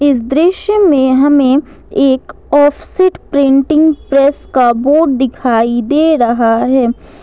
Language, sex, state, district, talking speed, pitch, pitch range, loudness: Hindi, female, Jharkhand, Ranchi, 115 wpm, 275 Hz, 255-305 Hz, -11 LUFS